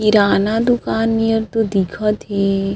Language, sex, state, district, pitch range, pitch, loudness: Chhattisgarhi, female, Chhattisgarh, Sarguja, 200-225 Hz, 215 Hz, -17 LUFS